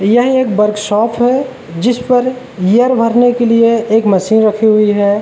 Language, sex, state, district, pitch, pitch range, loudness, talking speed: Hindi, male, Uttarakhand, Uttarkashi, 230 Hz, 210-245 Hz, -12 LUFS, 175 wpm